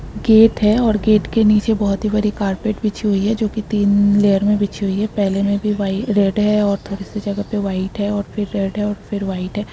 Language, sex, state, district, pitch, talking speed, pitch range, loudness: Hindi, female, Uttar Pradesh, Deoria, 205 Hz, 260 wpm, 200-210 Hz, -17 LUFS